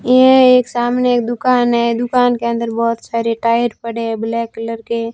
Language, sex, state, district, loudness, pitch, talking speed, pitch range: Hindi, female, Rajasthan, Barmer, -15 LUFS, 235 Hz, 200 wpm, 230-245 Hz